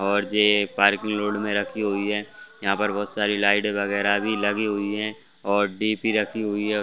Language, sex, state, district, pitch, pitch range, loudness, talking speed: Hindi, male, Chhattisgarh, Bastar, 105 Hz, 100-105 Hz, -23 LUFS, 200 wpm